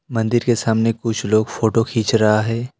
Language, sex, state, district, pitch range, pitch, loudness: Hindi, male, West Bengal, Alipurduar, 110-115 Hz, 115 Hz, -18 LUFS